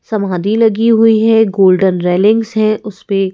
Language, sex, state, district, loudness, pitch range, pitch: Hindi, female, Madhya Pradesh, Bhopal, -12 LUFS, 195-225 Hz, 215 Hz